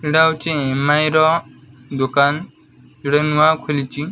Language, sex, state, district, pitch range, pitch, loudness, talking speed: Odia, male, Odisha, Khordha, 140-155 Hz, 150 Hz, -17 LUFS, 115 wpm